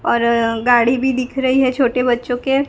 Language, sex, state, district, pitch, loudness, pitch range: Hindi, female, Gujarat, Gandhinagar, 250 Hz, -16 LUFS, 240-265 Hz